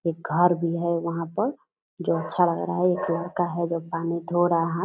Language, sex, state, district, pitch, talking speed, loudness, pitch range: Hindi, female, Bihar, Purnia, 170 Hz, 245 wpm, -25 LUFS, 165-175 Hz